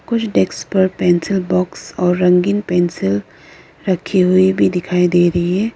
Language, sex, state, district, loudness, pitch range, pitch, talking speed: Hindi, female, Arunachal Pradesh, Lower Dibang Valley, -16 LUFS, 175-190 Hz, 180 Hz, 155 wpm